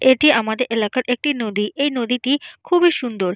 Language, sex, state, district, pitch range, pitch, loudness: Bengali, female, West Bengal, Jalpaiguri, 225-290 Hz, 250 Hz, -19 LUFS